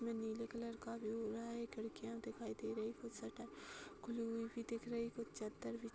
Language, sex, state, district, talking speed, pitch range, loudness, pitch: Hindi, female, Uttar Pradesh, Hamirpur, 240 wpm, 225-235 Hz, -47 LUFS, 230 Hz